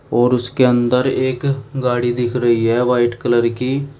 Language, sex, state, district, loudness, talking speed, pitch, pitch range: Hindi, male, Uttar Pradesh, Shamli, -17 LUFS, 165 wpm, 125 Hz, 120-130 Hz